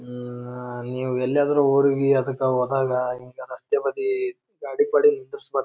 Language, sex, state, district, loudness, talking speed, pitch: Kannada, male, Karnataka, Bijapur, -23 LUFS, 140 wpm, 135 Hz